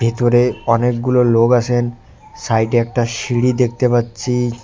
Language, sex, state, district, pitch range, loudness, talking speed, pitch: Bengali, male, West Bengal, Cooch Behar, 115-125 Hz, -16 LUFS, 115 wpm, 120 Hz